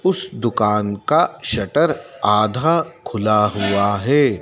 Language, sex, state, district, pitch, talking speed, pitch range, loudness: Hindi, male, Madhya Pradesh, Dhar, 105 Hz, 110 wpm, 105-145 Hz, -18 LUFS